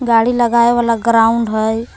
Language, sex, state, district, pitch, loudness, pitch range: Magahi, female, Jharkhand, Palamu, 230 Hz, -13 LUFS, 225-235 Hz